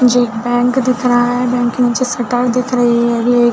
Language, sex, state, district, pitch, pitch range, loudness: Hindi, female, Chhattisgarh, Bilaspur, 245 Hz, 240-250 Hz, -14 LUFS